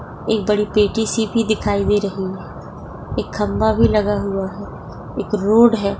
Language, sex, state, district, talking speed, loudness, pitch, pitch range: Hindi, female, Maharashtra, Sindhudurg, 180 wpm, -18 LUFS, 210 Hz, 200-220 Hz